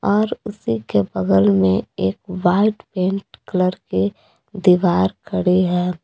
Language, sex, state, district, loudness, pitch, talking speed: Hindi, female, Jharkhand, Palamu, -19 LUFS, 180 Hz, 130 wpm